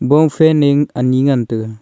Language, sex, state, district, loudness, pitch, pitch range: Wancho, male, Arunachal Pradesh, Longding, -13 LUFS, 140 Hz, 125-150 Hz